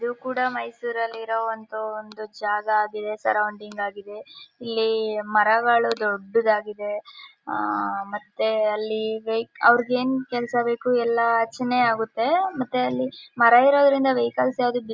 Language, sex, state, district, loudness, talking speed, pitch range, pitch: Kannada, female, Karnataka, Mysore, -23 LUFS, 115 wpm, 210-240 Hz, 225 Hz